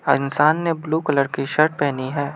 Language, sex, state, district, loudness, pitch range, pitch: Hindi, male, Arunachal Pradesh, Lower Dibang Valley, -20 LUFS, 140-155 Hz, 145 Hz